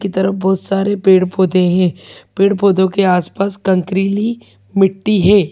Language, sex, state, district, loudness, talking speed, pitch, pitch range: Hindi, female, Delhi, New Delhi, -14 LUFS, 130 wpm, 190 Hz, 185-200 Hz